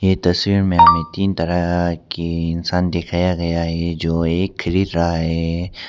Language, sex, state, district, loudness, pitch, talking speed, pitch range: Hindi, male, Arunachal Pradesh, Papum Pare, -18 LUFS, 85 Hz, 165 wpm, 85-90 Hz